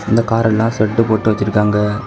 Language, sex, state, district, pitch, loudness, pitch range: Tamil, male, Tamil Nadu, Kanyakumari, 110 Hz, -15 LUFS, 105-115 Hz